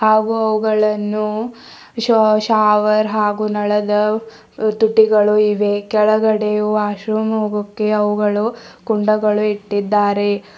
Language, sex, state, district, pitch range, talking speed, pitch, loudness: Kannada, female, Karnataka, Bidar, 210-220 Hz, 85 wpm, 215 Hz, -16 LUFS